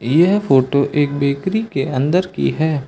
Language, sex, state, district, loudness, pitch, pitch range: Hindi, male, Uttar Pradesh, Lucknow, -17 LUFS, 145 Hz, 140-180 Hz